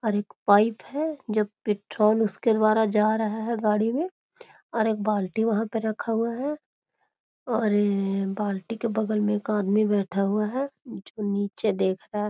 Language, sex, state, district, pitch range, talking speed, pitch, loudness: Magahi, female, Bihar, Gaya, 205-225 Hz, 175 wpm, 215 Hz, -25 LUFS